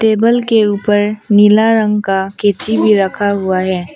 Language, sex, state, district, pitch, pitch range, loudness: Hindi, female, Arunachal Pradesh, Papum Pare, 205 Hz, 195-215 Hz, -12 LUFS